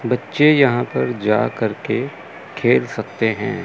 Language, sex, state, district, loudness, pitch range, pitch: Hindi, male, Chandigarh, Chandigarh, -18 LUFS, 110-125 Hz, 120 Hz